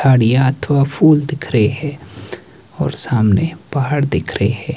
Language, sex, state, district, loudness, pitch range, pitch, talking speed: Hindi, male, Himachal Pradesh, Shimla, -16 LUFS, 120-150 Hz, 140 Hz, 140 wpm